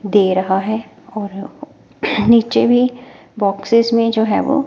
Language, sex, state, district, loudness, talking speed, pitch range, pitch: Hindi, female, Himachal Pradesh, Shimla, -16 LUFS, 140 wpm, 200-235 Hz, 220 Hz